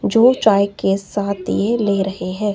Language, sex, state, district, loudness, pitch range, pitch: Hindi, female, Himachal Pradesh, Shimla, -17 LUFS, 195-215 Hz, 200 Hz